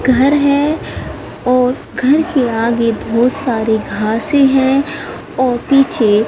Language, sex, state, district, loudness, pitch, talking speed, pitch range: Hindi, female, Haryana, Jhajjar, -14 LUFS, 255 Hz, 115 wpm, 230-275 Hz